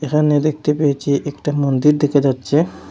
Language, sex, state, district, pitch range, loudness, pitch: Bengali, male, Assam, Hailakandi, 140-150 Hz, -17 LUFS, 145 Hz